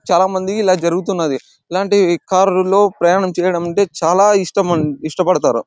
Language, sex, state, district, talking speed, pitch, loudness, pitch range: Telugu, male, Andhra Pradesh, Chittoor, 140 wpm, 185 Hz, -15 LUFS, 170-195 Hz